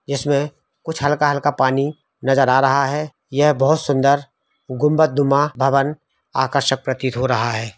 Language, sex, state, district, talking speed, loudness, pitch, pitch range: Hindi, male, Uttar Pradesh, Varanasi, 145 wpm, -18 LUFS, 140 Hz, 130-145 Hz